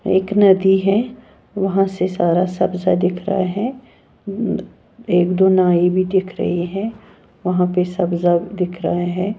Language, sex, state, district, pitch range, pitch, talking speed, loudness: Hindi, female, Haryana, Jhajjar, 180-200 Hz, 190 Hz, 145 wpm, -18 LUFS